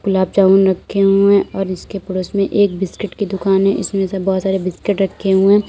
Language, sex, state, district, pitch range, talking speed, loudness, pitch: Hindi, female, Uttar Pradesh, Lalitpur, 190-200 Hz, 210 wpm, -16 LUFS, 195 Hz